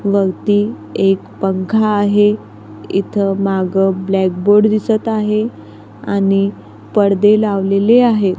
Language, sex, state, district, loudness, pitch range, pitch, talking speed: Marathi, female, Maharashtra, Gondia, -15 LUFS, 195-210 Hz, 200 Hz, 100 wpm